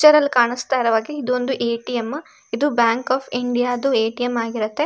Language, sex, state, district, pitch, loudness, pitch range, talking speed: Kannada, female, Karnataka, Shimoga, 245 Hz, -20 LUFS, 235-270 Hz, 170 wpm